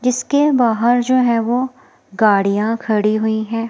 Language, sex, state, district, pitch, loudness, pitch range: Hindi, female, Himachal Pradesh, Shimla, 230 Hz, -16 LUFS, 220-250 Hz